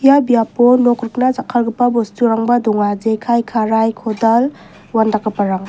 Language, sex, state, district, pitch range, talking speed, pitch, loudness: Garo, female, Meghalaya, West Garo Hills, 220-245 Hz, 105 wpm, 230 Hz, -15 LUFS